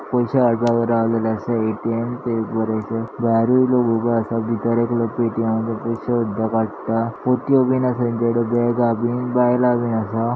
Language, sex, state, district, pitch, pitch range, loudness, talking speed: Konkani, male, Goa, North and South Goa, 115 Hz, 115-120 Hz, -20 LUFS, 135 wpm